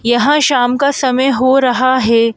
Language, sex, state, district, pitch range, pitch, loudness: Hindi, male, Madhya Pradesh, Bhopal, 245-270 Hz, 255 Hz, -12 LUFS